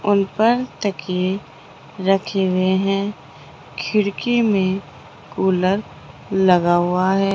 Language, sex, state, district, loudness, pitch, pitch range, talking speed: Hindi, female, Rajasthan, Jaipur, -19 LUFS, 190 Hz, 180-200 Hz, 100 wpm